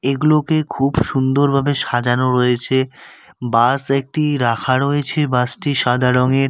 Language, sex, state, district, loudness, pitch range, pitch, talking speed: Bengali, male, West Bengal, Cooch Behar, -17 LUFS, 125-145 Hz, 135 Hz, 110 wpm